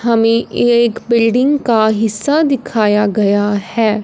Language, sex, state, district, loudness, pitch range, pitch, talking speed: Hindi, female, Punjab, Fazilka, -13 LUFS, 210-240 Hz, 225 Hz, 120 wpm